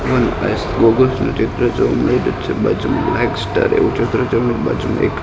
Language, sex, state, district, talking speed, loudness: Gujarati, male, Gujarat, Gandhinagar, 185 wpm, -16 LUFS